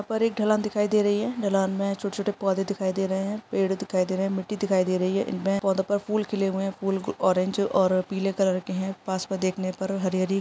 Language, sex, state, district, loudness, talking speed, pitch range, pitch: Hindi, female, Chhattisgarh, Raigarh, -26 LUFS, 275 wpm, 190-205 Hz, 195 Hz